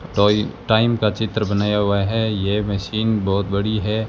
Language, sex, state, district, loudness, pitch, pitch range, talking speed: Hindi, male, Rajasthan, Bikaner, -20 LUFS, 105 Hz, 100-110 Hz, 175 wpm